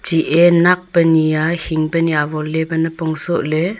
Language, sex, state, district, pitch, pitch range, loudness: Wancho, female, Arunachal Pradesh, Longding, 165 Hz, 155-170 Hz, -15 LUFS